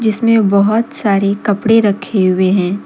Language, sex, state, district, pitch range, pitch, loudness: Hindi, female, Jharkhand, Deoghar, 195-225 Hz, 205 Hz, -13 LUFS